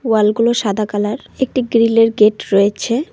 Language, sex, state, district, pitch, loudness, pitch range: Bengali, female, West Bengal, Cooch Behar, 225 Hz, -15 LUFS, 210-235 Hz